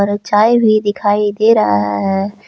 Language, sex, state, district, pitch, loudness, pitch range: Hindi, male, Jharkhand, Palamu, 205 Hz, -13 LUFS, 195-215 Hz